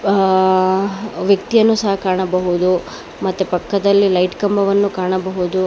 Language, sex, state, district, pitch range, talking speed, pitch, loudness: Kannada, female, Karnataka, Bangalore, 185-200 Hz, 95 wpm, 190 Hz, -16 LUFS